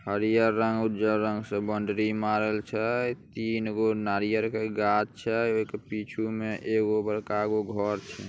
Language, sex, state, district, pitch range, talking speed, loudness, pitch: Magahi, male, Bihar, Samastipur, 105-110 Hz, 150 wpm, -28 LUFS, 110 Hz